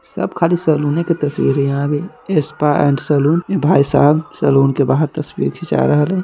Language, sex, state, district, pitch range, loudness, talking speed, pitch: Hindi, male, Bihar, Muzaffarpur, 140-165 Hz, -15 LUFS, 200 wpm, 150 Hz